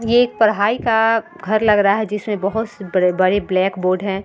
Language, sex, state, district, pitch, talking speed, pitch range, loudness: Hindi, female, Bihar, Vaishali, 205 Hz, 210 wpm, 190-220 Hz, -17 LUFS